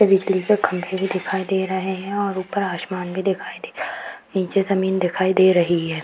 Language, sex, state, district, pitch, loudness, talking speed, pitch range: Hindi, female, Bihar, Darbhanga, 190 Hz, -21 LUFS, 210 wpm, 185-195 Hz